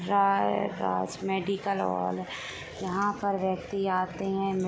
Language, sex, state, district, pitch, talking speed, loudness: Hindi, female, Jharkhand, Sahebganj, 190 Hz, 115 wpm, -29 LUFS